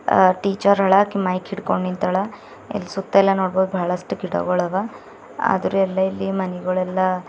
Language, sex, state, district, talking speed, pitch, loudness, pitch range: Kannada, male, Karnataka, Bidar, 140 wpm, 190 Hz, -20 LUFS, 185-195 Hz